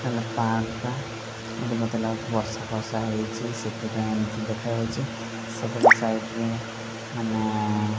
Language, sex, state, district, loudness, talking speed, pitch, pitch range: Odia, male, Odisha, Khordha, -26 LUFS, 130 wpm, 115 Hz, 110-115 Hz